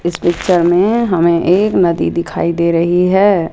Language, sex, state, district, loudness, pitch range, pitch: Hindi, female, Rajasthan, Jaipur, -13 LUFS, 170-190 Hz, 175 Hz